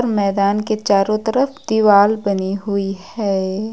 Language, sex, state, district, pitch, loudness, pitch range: Hindi, female, Uttar Pradesh, Lucknow, 205 Hz, -17 LUFS, 200-220 Hz